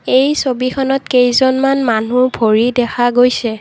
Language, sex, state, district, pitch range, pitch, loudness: Assamese, female, Assam, Kamrup Metropolitan, 240-265 Hz, 250 Hz, -13 LUFS